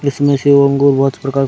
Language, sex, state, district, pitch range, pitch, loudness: Hindi, male, Chhattisgarh, Raigarh, 135-140 Hz, 140 Hz, -12 LUFS